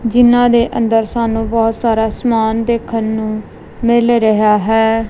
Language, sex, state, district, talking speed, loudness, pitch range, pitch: Punjabi, female, Punjab, Kapurthala, 140 wpm, -14 LUFS, 220-235 Hz, 225 Hz